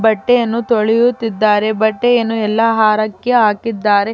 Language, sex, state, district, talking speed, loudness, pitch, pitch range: Kannada, female, Karnataka, Chamarajanagar, 85 wpm, -14 LUFS, 225 Hz, 215-235 Hz